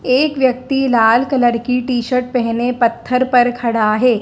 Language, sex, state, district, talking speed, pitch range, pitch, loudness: Hindi, female, Madhya Pradesh, Dhar, 170 wpm, 235-255 Hz, 245 Hz, -15 LUFS